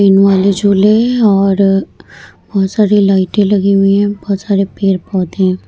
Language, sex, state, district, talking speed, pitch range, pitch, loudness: Hindi, female, Bihar, Vaishali, 160 wpm, 195-205 Hz, 195 Hz, -11 LUFS